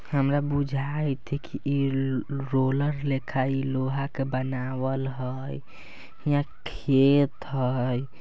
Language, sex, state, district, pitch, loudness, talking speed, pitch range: Bajjika, male, Bihar, Vaishali, 135 Hz, -27 LUFS, 110 wpm, 130-140 Hz